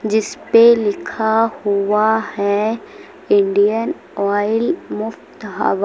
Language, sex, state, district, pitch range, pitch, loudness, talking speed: Hindi, female, Uttar Pradesh, Lucknow, 205-225 Hz, 215 Hz, -17 LUFS, 90 wpm